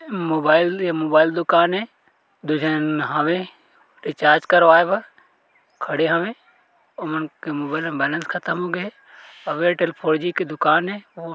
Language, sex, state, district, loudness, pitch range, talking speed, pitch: Chhattisgarhi, male, Chhattisgarh, Korba, -20 LUFS, 155-180 Hz, 145 wpm, 165 Hz